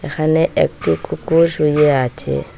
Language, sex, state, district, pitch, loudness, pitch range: Bengali, female, Assam, Hailakandi, 150 Hz, -16 LUFS, 125-160 Hz